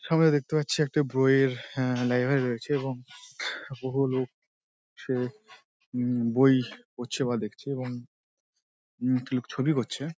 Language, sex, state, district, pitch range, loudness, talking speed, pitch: Bengali, male, West Bengal, Dakshin Dinajpur, 125-140 Hz, -28 LUFS, 135 wpm, 130 Hz